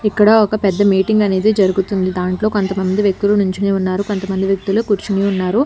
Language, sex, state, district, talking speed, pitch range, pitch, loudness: Telugu, female, Telangana, Hyderabad, 160 wpm, 190-205 Hz, 195 Hz, -15 LUFS